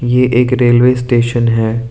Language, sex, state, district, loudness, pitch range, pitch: Hindi, male, Arunachal Pradesh, Lower Dibang Valley, -12 LUFS, 120-125 Hz, 120 Hz